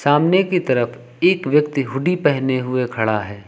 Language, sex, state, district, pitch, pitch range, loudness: Hindi, male, Uttar Pradesh, Lucknow, 135 Hz, 120-150 Hz, -18 LUFS